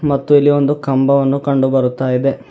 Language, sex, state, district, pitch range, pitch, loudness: Kannada, male, Karnataka, Bidar, 135-145 Hz, 140 Hz, -14 LUFS